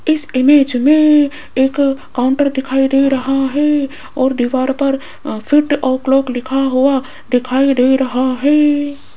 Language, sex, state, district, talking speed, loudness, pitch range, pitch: Hindi, female, Rajasthan, Jaipur, 135 wpm, -14 LUFS, 260-285 Hz, 270 Hz